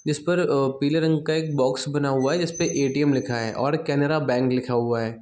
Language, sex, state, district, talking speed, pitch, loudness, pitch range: Hindi, male, Chhattisgarh, Bilaspur, 265 wpm, 140 Hz, -23 LUFS, 130-155 Hz